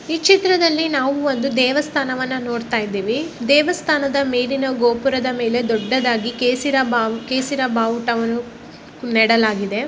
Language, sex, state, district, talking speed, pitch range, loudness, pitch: Kannada, female, Karnataka, Bellary, 105 wpm, 235-280 Hz, -18 LUFS, 255 Hz